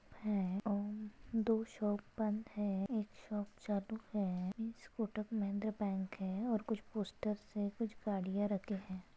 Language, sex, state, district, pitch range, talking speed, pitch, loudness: Hindi, female, Maharashtra, Sindhudurg, 200-220 Hz, 150 wpm, 210 Hz, -40 LUFS